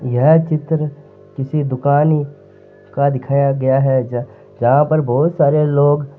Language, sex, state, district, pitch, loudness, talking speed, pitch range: Marwari, male, Rajasthan, Nagaur, 145 Hz, -16 LUFS, 135 wpm, 135-150 Hz